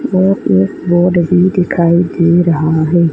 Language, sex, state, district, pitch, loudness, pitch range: Hindi, female, Madhya Pradesh, Dhar, 175 Hz, -12 LUFS, 165-180 Hz